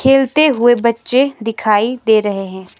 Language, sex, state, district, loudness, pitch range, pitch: Hindi, female, Himachal Pradesh, Shimla, -14 LUFS, 215-265 Hz, 235 Hz